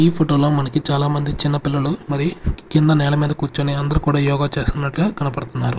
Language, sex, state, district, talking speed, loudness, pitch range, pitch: Telugu, male, Andhra Pradesh, Sri Satya Sai, 175 wpm, -19 LUFS, 140-150 Hz, 145 Hz